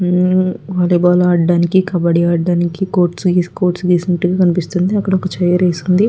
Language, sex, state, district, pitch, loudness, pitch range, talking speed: Telugu, female, Andhra Pradesh, Guntur, 180 Hz, -14 LUFS, 175-185 Hz, 130 wpm